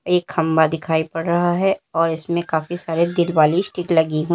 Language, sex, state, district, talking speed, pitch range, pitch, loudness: Hindi, female, Uttar Pradesh, Lalitpur, 190 wpm, 160-175 Hz, 170 Hz, -19 LUFS